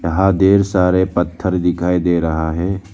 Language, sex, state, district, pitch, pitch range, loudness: Hindi, male, Arunachal Pradesh, Lower Dibang Valley, 90 Hz, 85-95 Hz, -16 LUFS